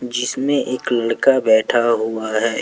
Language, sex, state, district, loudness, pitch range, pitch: Hindi, male, Jharkhand, Palamu, -18 LUFS, 110-125 Hz, 120 Hz